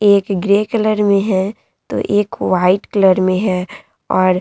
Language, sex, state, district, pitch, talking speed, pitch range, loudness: Hindi, female, Bihar, Vaishali, 200 Hz, 175 wpm, 185-205 Hz, -15 LUFS